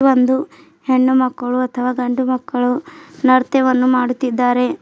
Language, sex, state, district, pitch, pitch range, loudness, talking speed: Kannada, female, Karnataka, Bidar, 255 Hz, 250-260 Hz, -16 LUFS, 100 wpm